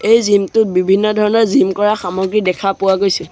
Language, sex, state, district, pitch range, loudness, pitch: Assamese, male, Assam, Sonitpur, 190-215 Hz, -14 LUFS, 200 Hz